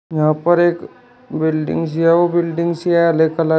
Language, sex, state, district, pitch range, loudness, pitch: Hindi, male, Uttar Pradesh, Shamli, 160-175 Hz, -16 LUFS, 165 Hz